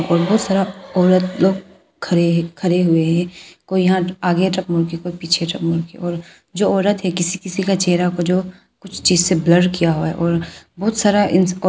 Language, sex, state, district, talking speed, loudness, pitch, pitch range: Hindi, female, Arunachal Pradesh, Papum Pare, 210 wpm, -17 LUFS, 180 Hz, 170-190 Hz